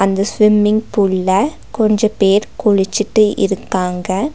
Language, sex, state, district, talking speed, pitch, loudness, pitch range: Tamil, female, Tamil Nadu, Nilgiris, 95 wpm, 205 Hz, -15 LUFS, 195-215 Hz